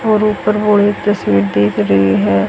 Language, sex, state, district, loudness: Hindi, female, Haryana, Charkhi Dadri, -13 LUFS